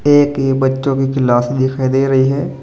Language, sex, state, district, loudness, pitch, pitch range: Hindi, male, Uttar Pradesh, Saharanpur, -14 LUFS, 135 Hz, 130-140 Hz